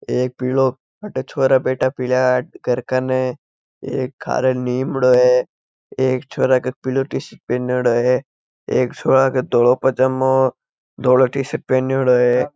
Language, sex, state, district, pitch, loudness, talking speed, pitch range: Marwari, male, Rajasthan, Nagaur, 130 Hz, -18 LUFS, 130 wpm, 125-130 Hz